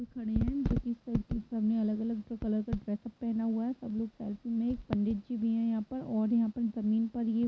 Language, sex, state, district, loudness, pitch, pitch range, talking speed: Hindi, female, Bihar, East Champaran, -33 LUFS, 225 Hz, 220-235 Hz, 240 wpm